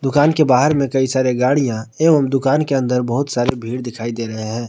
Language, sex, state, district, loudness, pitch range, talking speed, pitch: Hindi, male, Jharkhand, Garhwa, -17 LUFS, 120-140 Hz, 230 wpm, 130 Hz